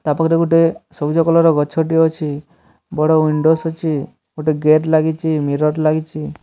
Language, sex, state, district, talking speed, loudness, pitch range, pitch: Odia, male, Odisha, Sambalpur, 170 wpm, -16 LUFS, 150-165 Hz, 155 Hz